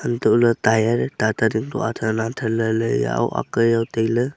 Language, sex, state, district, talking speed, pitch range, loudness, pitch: Wancho, male, Arunachal Pradesh, Longding, 165 wpm, 110-115 Hz, -20 LUFS, 115 Hz